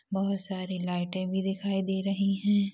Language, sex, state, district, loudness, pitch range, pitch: Hindi, female, Chhattisgarh, Rajnandgaon, -30 LUFS, 185-195 Hz, 195 Hz